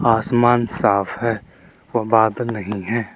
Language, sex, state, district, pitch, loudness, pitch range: Hindi, male, Arunachal Pradesh, Lower Dibang Valley, 115 Hz, -19 LUFS, 105-120 Hz